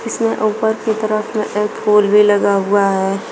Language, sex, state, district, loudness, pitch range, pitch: Hindi, female, Uttar Pradesh, Shamli, -15 LUFS, 205-220 Hz, 210 Hz